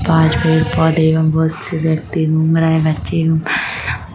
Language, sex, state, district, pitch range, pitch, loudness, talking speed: Hindi, female, Jharkhand, Sahebganj, 155-160 Hz, 160 Hz, -15 LUFS, 175 wpm